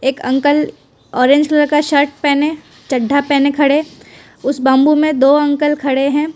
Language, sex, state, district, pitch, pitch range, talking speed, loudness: Hindi, female, Gujarat, Valsad, 285 Hz, 275-295 Hz, 160 wpm, -14 LUFS